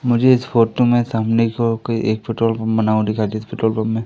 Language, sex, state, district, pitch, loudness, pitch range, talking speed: Hindi, male, Madhya Pradesh, Katni, 115 Hz, -18 LUFS, 110-120 Hz, 265 wpm